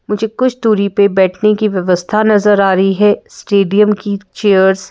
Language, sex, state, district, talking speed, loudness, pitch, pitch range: Hindi, female, Madhya Pradesh, Bhopal, 185 wpm, -12 LUFS, 205 Hz, 195-210 Hz